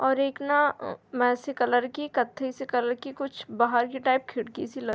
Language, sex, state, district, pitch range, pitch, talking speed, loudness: Hindi, female, Bihar, Sitamarhi, 245-275 Hz, 260 Hz, 230 wpm, -27 LUFS